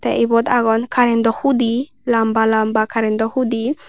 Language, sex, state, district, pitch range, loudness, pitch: Chakma, female, Tripura, West Tripura, 225-245 Hz, -17 LUFS, 230 Hz